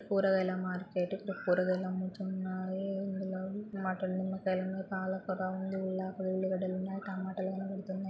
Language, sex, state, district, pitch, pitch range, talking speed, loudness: Telugu, female, Andhra Pradesh, Srikakulam, 190 Hz, 185-195 Hz, 105 wpm, -35 LUFS